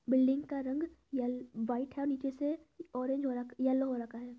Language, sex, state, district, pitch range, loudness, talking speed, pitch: Hindi, female, Uttar Pradesh, Etah, 245-280 Hz, -36 LUFS, 205 wpm, 265 Hz